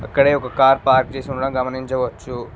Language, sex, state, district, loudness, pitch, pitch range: Telugu, male, Telangana, Mahabubabad, -18 LUFS, 130 Hz, 125-135 Hz